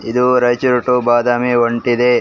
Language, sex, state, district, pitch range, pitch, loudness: Kannada, male, Karnataka, Raichur, 120-125 Hz, 120 Hz, -14 LUFS